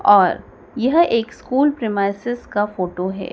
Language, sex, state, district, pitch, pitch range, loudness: Hindi, female, Madhya Pradesh, Dhar, 230 Hz, 200-255 Hz, -19 LUFS